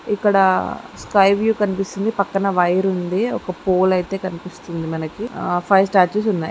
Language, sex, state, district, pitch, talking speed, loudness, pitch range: Telugu, female, Andhra Pradesh, Guntur, 195 Hz, 145 wpm, -19 LUFS, 180-205 Hz